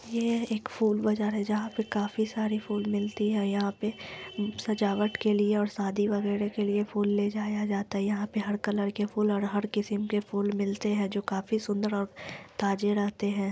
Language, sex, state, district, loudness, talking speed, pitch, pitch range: Hindi, female, Bihar, Lakhisarai, -29 LUFS, 215 wpm, 205 Hz, 205-215 Hz